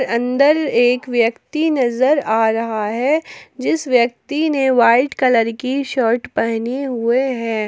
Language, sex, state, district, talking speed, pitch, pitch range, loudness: Hindi, female, Jharkhand, Palamu, 135 wpm, 250 Hz, 230-275 Hz, -17 LUFS